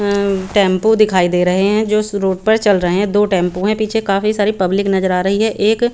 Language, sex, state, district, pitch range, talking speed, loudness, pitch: Hindi, female, Chandigarh, Chandigarh, 190-215 Hz, 240 wpm, -15 LUFS, 200 Hz